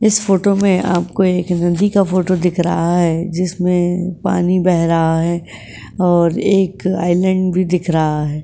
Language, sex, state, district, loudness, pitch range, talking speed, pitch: Hindi, female, Maharashtra, Chandrapur, -15 LUFS, 170-185 Hz, 170 wpm, 180 Hz